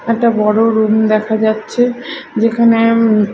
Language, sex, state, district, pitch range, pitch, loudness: Bengali, female, Odisha, Malkangiri, 220-230 Hz, 225 Hz, -13 LUFS